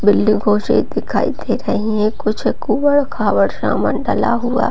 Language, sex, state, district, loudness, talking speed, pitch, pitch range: Hindi, female, Bihar, Gopalganj, -17 LUFS, 140 wpm, 215 Hz, 210-245 Hz